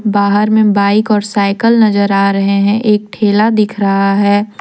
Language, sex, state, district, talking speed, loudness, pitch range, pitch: Hindi, female, Jharkhand, Deoghar, 180 wpm, -11 LUFS, 200-215 Hz, 205 Hz